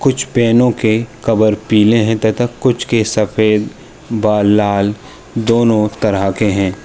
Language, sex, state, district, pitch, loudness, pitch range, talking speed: Hindi, male, Uttar Pradesh, Jalaun, 110 Hz, -14 LUFS, 105-115 Hz, 140 wpm